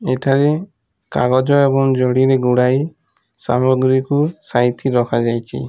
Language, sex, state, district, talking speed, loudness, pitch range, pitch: Odia, male, Odisha, Nuapada, 85 wpm, -16 LUFS, 125-135 Hz, 130 Hz